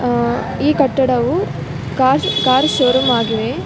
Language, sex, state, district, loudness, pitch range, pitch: Kannada, female, Karnataka, Dakshina Kannada, -15 LUFS, 240-265 Hz, 255 Hz